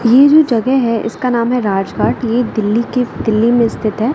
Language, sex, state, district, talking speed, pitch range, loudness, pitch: Hindi, female, Uttar Pradesh, Lucknow, 215 wpm, 225-250 Hz, -14 LUFS, 235 Hz